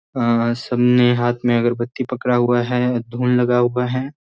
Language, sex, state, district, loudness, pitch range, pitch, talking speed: Hindi, male, Bihar, Sitamarhi, -18 LUFS, 120-125 Hz, 120 Hz, 165 wpm